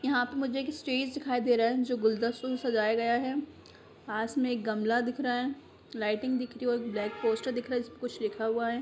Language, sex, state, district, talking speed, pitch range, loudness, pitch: Hindi, female, Jharkhand, Sahebganj, 240 wpm, 230-255 Hz, -31 LUFS, 245 Hz